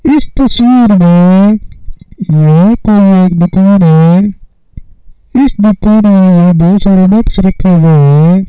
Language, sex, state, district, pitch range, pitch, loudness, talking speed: Hindi, male, Rajasthan, Bikaner, 175-215 Hz, 190 Hz, -7 LUFS, 70 wpm